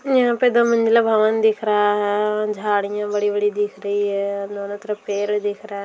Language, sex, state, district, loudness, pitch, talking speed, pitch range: Hindi, female, Bihar, Darbhanga, -20 LUFS, 210 Hz, 205 wpm, 205-215 Hz